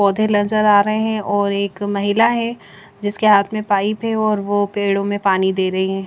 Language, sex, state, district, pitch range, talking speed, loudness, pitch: Hindi, female, Chandigarh, Chandigarh, 200-215 Hz, 255 wpm, -17 LUFS, 205 Hz